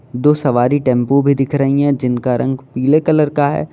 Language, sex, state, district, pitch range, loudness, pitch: Hindi, male, Uttar Pradesh, Lalitpur, 125-145 Hz, -15 LUFS, 135 Hz